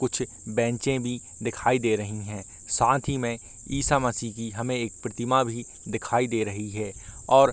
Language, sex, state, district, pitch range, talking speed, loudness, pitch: Hindi, male, Bihar, Kishanganj, 105-125 Hz, 185 wpm, -27 LUFS, 115 Hz